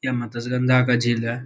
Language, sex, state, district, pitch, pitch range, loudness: Hindi, male, Bihar, Saharsa, 125 Hz, 120-125 Hz, -21 LUFS